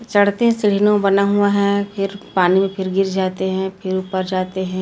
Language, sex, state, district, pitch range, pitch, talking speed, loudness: Hindi, female, Chhattisgarh, Raipur, 190-200 Hz, 195 Hz, 185 wpm, -18 LUFS